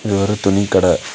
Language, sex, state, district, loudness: Tamil, male, Tamil Nadu, Kanyakumari, -16 LUFS